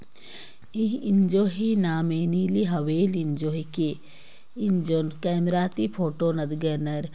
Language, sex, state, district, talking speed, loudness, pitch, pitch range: Sadri, female, Chhattisgarh, Jashpur, 110 wpm, -25 LUFS, 170 Hz, 155-195 Hz